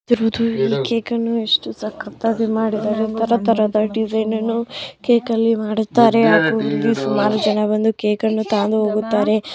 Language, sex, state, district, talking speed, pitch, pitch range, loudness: Kannada, female, Karnataka, Bijapur, 130 wpm, 220 Hz, 215-230 Hz, -18 LUFS